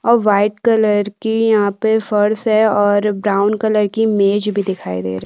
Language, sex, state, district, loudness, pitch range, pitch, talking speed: Hindi, female, Chhattisgarh, Korba, -15 LUFS, 205-220 Hz, 210 Hz, 170 wpm